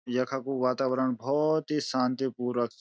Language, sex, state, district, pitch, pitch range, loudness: Garhwali, male, Uttarakhand, Uttarkashi, 130 Hz, 125-135 Hz, -29 LUFS